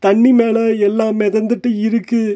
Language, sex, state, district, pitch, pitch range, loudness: Tamil, male, Tamil Nadu, Nilgiris, 225 Hz, 210-230 Hz, -14 LUFS